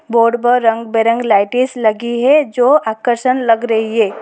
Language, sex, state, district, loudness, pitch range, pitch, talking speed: Hindi, female, Uttar Pradesh, Lalitpur, -14 LUFS, 225-245 Hz, 235 Hz, 170 wpm